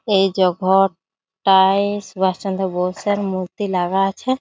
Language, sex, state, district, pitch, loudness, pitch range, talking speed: Bengali, female, West Bengal, Jalpaiguri, 195 Hz, -18 LUFS, 185-200 Hz, 120 wpm